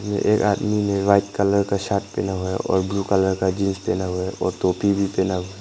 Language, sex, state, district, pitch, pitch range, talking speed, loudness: Hindi, male, Arunachal Pradesh, Papum Pare, 100 Hz, 95-100 Hz, 255 wpm, -21 LUFS